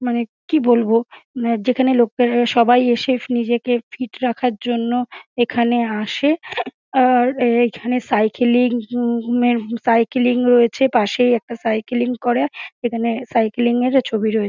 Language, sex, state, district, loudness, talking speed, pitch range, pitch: Bengali, female, West Bengal, Dakshin Dinajpur, -18 LUFS, 130 wpm, 235-250 Hz, 240 Hz